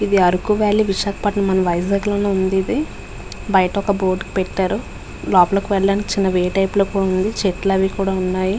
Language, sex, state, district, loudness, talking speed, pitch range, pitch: Telugu, female, Andhra Pradesh, Visakhapatnam, -18 LUFS, 175 wpm, 190-200 Hz, 195 Hz